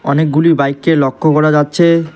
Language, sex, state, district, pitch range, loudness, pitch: Bengali, male, West Bengal, Alipurduar, 145-165 Hz, -12 LUFS, 155 Hz